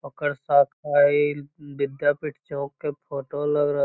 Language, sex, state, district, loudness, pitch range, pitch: Magahi, female, Bihar, Lakhisarai, -24 LUFS, 140-145 Hz, 145 Hz